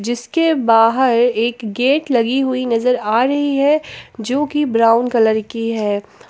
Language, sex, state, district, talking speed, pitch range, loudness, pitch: Hindi, female, Jharkhand, Palamu, 150 wpm, 230-270 Hz, -16 LUFS, 240 Hz